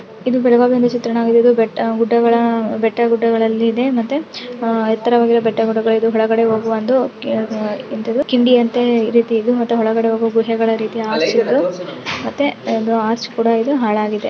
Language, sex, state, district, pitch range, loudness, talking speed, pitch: Kannada, female, Karnataka, Belgaum, 225-240 Hz, -16 LUFS, 135 wpm, 230 Hz